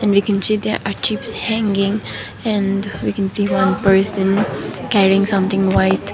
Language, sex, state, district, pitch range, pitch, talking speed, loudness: English, female, Sikkim, Gangtok, 195-205 Hz, 200 Hz, 125 wpm, -17 LUFS